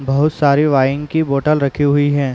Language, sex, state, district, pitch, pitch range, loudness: Hindi, male, Uttar Pradesh, Muzaffarnagar, 145 Hz, 140-150 Hz, -15 LUFS